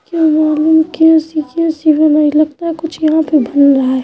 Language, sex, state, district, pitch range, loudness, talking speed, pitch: Hindi, female, Uttar Pradesh, Jalaun, 300-320 Hz, -12 LUFS, 180 wpm, 310 Hz